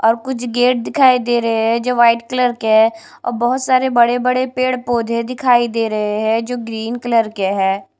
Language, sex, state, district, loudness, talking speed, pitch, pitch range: Hindi, female, Punjab, Kapurthala, -16 LUFS, 205 wpm, 240 Hz, 225-250 Hz